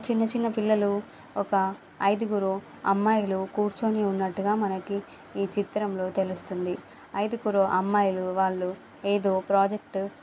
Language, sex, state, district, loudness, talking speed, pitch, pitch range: Telugu, female, Andhra Pradesh, Srikakulam, -27 LUFS, 100 wpm, 200 Hz, 190-210 Hz